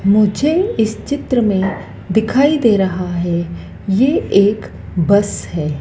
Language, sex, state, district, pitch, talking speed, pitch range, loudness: Hindi, female, Madhya Pradesh, Dhar, 200 Hz, 125 wpm, 180-240 Hz, -16 LUFS